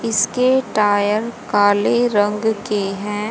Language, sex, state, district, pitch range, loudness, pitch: Hindi, female, Haryana, Charkhi Dadri, 205-230 Hz, -17 LUFS, 210 Hz